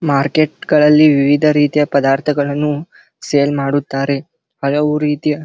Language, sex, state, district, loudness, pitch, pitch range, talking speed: Kannada, male, Karnataka, Belgaum, -14 LUFS, 145 Hz, 140-150 Hz, 110 wpm